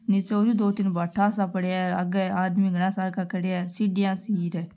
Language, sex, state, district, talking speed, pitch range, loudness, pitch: Marwari, female, Rajasthan, Nagaur, 240 wpm, 185-200 Hz, -25 LUFS, 190 Hz